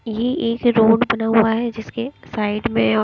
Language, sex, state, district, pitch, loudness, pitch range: Hindi, female, Himachal Pradesh, Shimla, 225 Hz, -19 LUFS, 220-235 Hz